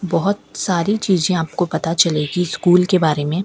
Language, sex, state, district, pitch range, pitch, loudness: Hindi, female, Rajasthan, Bikaner, 160-185 Hz, 175 Hz, -17 LUFS